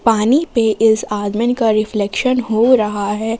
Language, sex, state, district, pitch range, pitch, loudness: Hindi, female, Jharkhand, Palamu, 215-240 Hz, 220 Hz, -15 LUFS